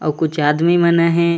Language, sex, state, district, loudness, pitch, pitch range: Chhattisgarhi, male, Chhattisgarh, Raigarh, -15 LUFS, 170 Hz, 155-170 Hz